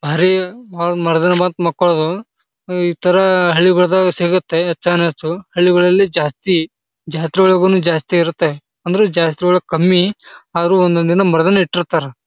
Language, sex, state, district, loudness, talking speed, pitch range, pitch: Kannada, male, Karnataka, Bijapur, -14 LUFS, 115 wpm, 165-185 Hz, 175 Hz